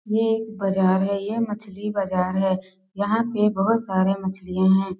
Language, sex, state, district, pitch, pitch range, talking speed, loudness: Hindi, female, Bihar, East Champaran, 195 Hz, 190-210 Hz, 170 wpm, -23 LUFS